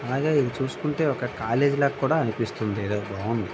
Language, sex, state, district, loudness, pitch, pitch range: Telugu, male, Andhra Pradesh, Visakhapatnam, -25 LUFS, 125 Hz, 110-140 Hz